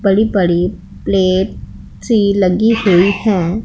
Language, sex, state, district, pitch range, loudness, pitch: Hindi, female, Punjab, Pathankot, 185-215 Hz, -14 LUFS, 195 Hz